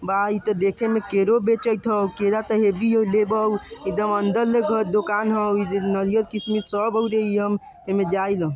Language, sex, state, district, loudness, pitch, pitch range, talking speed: Bajjika, male, Bihar, Vaishali, -22 LUFS, 210 Hz, 200-220 Hz, 195 wpm